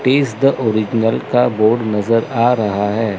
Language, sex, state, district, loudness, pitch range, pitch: Hindi, male, Chandigarh, Chandigarh, -16 LUFS, 110-125 Hz, 115 Hz